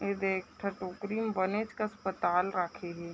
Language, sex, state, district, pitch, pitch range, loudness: Chhattisgarhi, female, Chhattisgarh, Raigarh, 190 Hz, 180-210 Hz, -33 LUFS